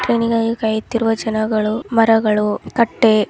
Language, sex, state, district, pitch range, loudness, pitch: Kannada, female, Karnataka, Raichur, 215-230 Hz, -17 LUFS, 225 Hz